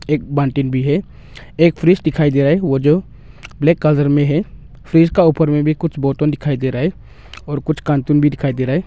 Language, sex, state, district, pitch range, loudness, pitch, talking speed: Hindi, male, Arunachal Pradesh, Longding, 140-160 Hz, -16 LUFS, 150 Hz, 235 wpm